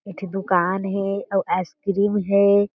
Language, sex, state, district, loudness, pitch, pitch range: Chhattisgarhi, female, Chhattisgarh, Jashpur, -21 LUFS, 195 Hz, 190-200 Hz